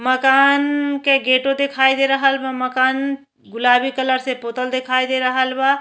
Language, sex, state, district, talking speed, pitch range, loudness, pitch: Bhojpuri, female, Uttar Pradesh, Deoria, 165 wpm, 255-275 Hz, -17 LUFS, 265 Hz